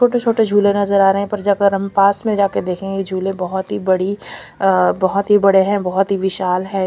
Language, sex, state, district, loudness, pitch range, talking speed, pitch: Hindi, female, Punjab, Fazilka, -16 LUFS, 190-205 Hz, 235 wpm, 195 Hz